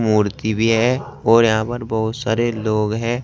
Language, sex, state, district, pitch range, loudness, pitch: Hindi, male, Uttar Pradesh, Saharanpur, 110-120 Hz, -18 LUFS, 115 Hz